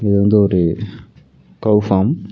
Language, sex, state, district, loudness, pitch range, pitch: Tamil, male, Tamil Nadu, Nilgiris, -15 LUFS, 95-105 Hz, 100 Hz